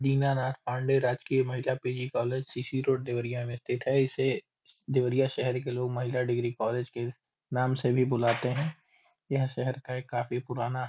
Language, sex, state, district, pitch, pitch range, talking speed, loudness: Hindi, male, Uttar Pradesh, Deoria, 125 Hz, 125-130 Hz, 185 wpm, -30 LUFS